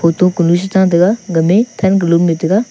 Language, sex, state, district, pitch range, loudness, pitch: Wancho, male, Arunachal Pradesh, Longding, 170-195 Hz, -12 LUFS, 180 Hz